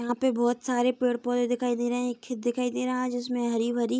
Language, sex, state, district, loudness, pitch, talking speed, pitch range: Hindi, female, Bihar, Bhagalpur, -27 LUFS, 245 Hz, 270 wpm, 240-250 Hz